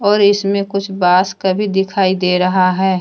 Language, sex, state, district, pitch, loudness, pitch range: Hindi, female, Jharkhand, Deoghar, 190 Hz, -14 LUFS, 185-200 Hz